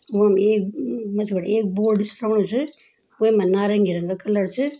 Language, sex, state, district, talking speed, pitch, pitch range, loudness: Garhwali, female, Uttarakhand, Tehri Garhwal, 175 wpm, 210 Hz, 200-220 Hz, -21 LUFS